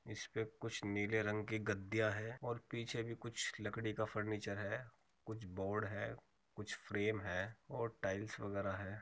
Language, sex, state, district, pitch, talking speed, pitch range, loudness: Hindi, male, Uttar Pradesh, Muzaffarnagar, 110 Hz, 165 wpm, 100-115 Hz, -43 LUFS